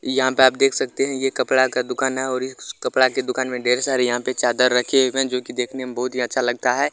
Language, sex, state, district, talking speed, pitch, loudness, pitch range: Hindi, male, Bihar, Araria, 295 wpm, 130 Hz, -20 LUFS, 125-130 Hz